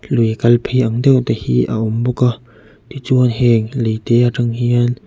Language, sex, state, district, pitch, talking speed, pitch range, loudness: Mizo, male, Mizoram, Aizawl, 120 Hz, 190 wpm, 110-125 Hz, -15 LUFS